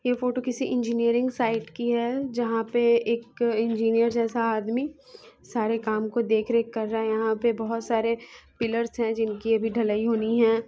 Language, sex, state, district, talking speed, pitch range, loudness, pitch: Hindi, female, Bihar, Muzaffarpur, 185 wpm, 225-235 Hz, -26 LUFS, 230 Hz